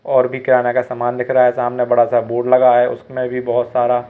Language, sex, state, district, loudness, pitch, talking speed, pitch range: Hindi, male, Madhya Pradesh, Katni, -16 LUFS, 125 Hz, 265 wpm, 120-125 Hz